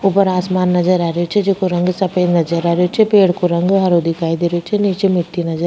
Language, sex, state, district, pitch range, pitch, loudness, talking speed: Rajasthani, female, Rajasthan, Nagaur, 170-190 Hz, 180 Hz, -15 LUFS, 265 wpm